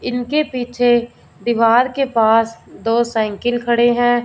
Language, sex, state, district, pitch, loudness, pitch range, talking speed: Hindi, female, Punjab, Fazilka, 240 Hz, -17 LUFS, 230-245 Hz, 125 wpm